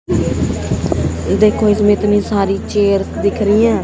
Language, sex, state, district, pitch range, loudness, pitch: Hindi, female, Haryana, Jhajjar, 200-210 Hz, -15 LUFS, 205 Hz